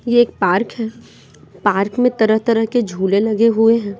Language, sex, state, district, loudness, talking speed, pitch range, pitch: Hindi, female, Bihar, Patna, -16 LUFS, 180 wpm, 200-230 Hz, 225 Hz